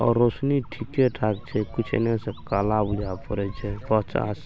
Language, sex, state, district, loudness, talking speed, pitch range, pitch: Maithili, male, Bihar, Saharsa, -25 LUFS, 160 wpm, 105-115 Hz, 110 Hz